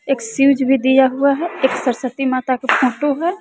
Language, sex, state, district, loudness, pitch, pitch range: Hindi, female, Bihar, West Champaran, -16 LUFS, 265 Hz, 255-275 Hz